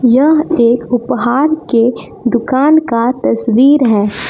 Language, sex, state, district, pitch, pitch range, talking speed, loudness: Hindi, female, Jharkhand, Palamu, 245 Hz, 235-280 Hz, 110 wpm, -12 LUFS